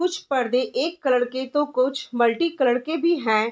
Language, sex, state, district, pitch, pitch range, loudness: Hindi, female, Bihar, Vaishali, 260 Hz, 245-315 Hz, -22 LUFS